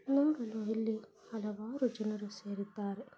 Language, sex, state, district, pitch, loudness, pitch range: Kannada, female, Karnataka, Dakshina Kannada, 220 Hz, -37 LUFS, 210-250 Hz